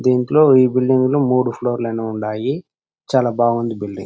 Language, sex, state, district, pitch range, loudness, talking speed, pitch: Telugu, male, Andhra Pradesh, Chittoor, 115-130 Hz, -17 LUFS, 175 wpm, 120 Hz